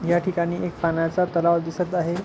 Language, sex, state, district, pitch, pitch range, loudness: Marathi, male, Maharashtra, Pune, 170 Hz, 170-180 Hz, -23 LUFS